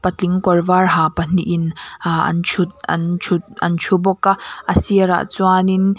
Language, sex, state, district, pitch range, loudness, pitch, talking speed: Mizo, female, Mizoram, Aizawl, 175-190 Hz, -17 LUFS, 180 Hz, 170 wpm